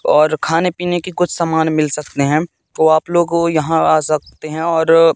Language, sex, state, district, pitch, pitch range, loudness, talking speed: Hindi, male, Madhya Pradesh, Katni, 160 Hz, 155-170 Hz, -15 LUFS, 210 wpm